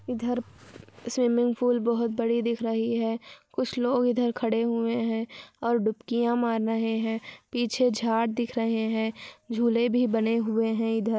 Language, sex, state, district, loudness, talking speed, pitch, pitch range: Hindi, female, Andhra Pradesh, Anantapur, -27 LUFS, 160 wpm, 235 Hz, 225-240 Hz